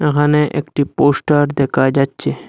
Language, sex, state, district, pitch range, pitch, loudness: Bengali, male, Assam, Hailakandi, 140-150 Hz, 145 Hz, -15 LUFS